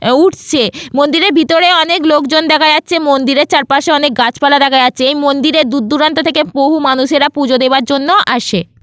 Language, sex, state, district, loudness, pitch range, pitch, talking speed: Bengali, female, West Bengal, Paschim Medinipur, -10 LUFS, 270-315 Hz, 290 Hz, 165 wpm